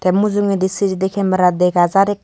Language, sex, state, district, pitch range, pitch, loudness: Chakma, female, Tripura, Dhalai, 185-200 Hz, 190 Hz, -16 LUFS